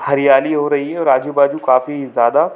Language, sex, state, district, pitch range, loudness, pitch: Hindi, male, Jharkhand, Sahebganj, 135-145 Hz, -15 LUFS, 140 Hz